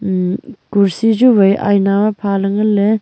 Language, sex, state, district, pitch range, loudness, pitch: Wancho, female, Arunachal Pradesh, Longding, 195-215 Hz, -14 LUFS, 205 Hz